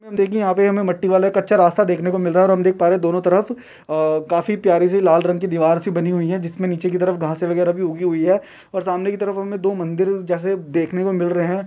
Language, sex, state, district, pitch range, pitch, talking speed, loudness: Bhojpuri, male, Bihar, Saran, 175-195 Hz, 180 Hz, 295 wpm, -18 LUFS